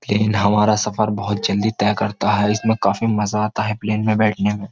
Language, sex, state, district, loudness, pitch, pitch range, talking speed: Hindi, male, Uttar Pradesh, Jyotiba Phule Nagar, -19 LUFS, 105 Hz, 105-110 Hz, 230 wpm